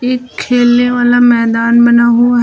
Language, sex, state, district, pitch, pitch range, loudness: Hindi, female, Uttar Pradesh, Lucknow, 240 Hz, 235-245 Hz, -10 LUFS